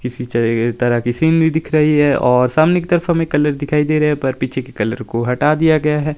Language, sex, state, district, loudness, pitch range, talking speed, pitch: Hindi, male, Himachal Pradesh, Shimla, -16 LUFS, 125-155 Hz, 235 wpm, 145 Hz